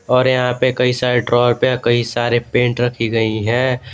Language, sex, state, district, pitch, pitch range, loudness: Hindi, male, Jharkhand, Garhwa, 120 Hz, 120-125 Hz, -16 LUFS